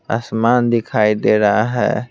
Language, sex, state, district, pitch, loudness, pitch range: Hindi, male, Bihar, Patna, 115 Hz, -16 LUFS, 105-120 Hz